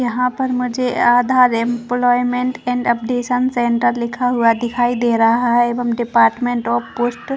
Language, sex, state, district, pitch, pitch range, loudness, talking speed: Hindi, female, Chhattisgarh, Bastar, 245 Hz, 235-250 Hz, -17 LUFS, 145 wpm